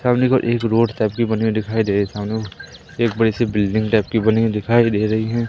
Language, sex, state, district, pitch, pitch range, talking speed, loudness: Hindi, male, Madhya Pradesh, Umaria, 110 Hz, 110-115 Hz, 240 wpm, -18 LUFS